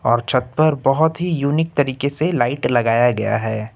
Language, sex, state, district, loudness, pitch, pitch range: Hindi, male, Uttar Pradesh, Lucknow, -18 LUFS, 135 Hz, 120-155 Hz